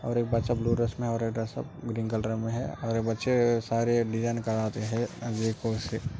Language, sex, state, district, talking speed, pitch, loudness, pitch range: Hindi, male, Maharashtra, Aurangabad, 175 wpm, 115 Hz, -29 LUFS, 110-120 Hz